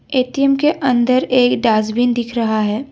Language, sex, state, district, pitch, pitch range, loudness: Hindi, female, Assam, Sonitpur, 245 Hz, 230-265 Hz, -16 LUFS